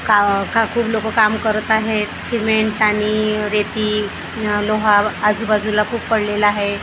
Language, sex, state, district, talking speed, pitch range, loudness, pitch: Marathi, female, Maharashtra, Gondia, 140 wpm, 210-220 Hz, -17 LUFS, 215 Hz